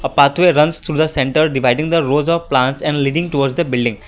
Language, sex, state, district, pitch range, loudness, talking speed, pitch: English, male, Assam, Kamrup Metropolitan, 135-160 Hz, -15 LUFS, 235 wpm, 145 Hz